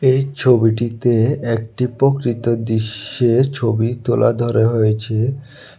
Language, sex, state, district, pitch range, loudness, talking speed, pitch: Bengali, male, Tripura, West Tripura, 115-125 Hz, -17 LUFS, 95 wpm, 120 Hz